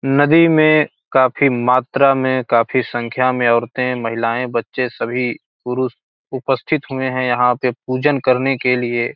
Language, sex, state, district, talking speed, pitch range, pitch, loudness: Hindi, male, Bihar, Gopalganj, 150 wpm, 120-135 Hz, 130 Hz, -17 LUFS